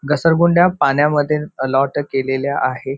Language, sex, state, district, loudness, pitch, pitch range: Marathi, male, Maharashtra, Nagpur, -16 LUFS, 145 Hz, 135-150 Hz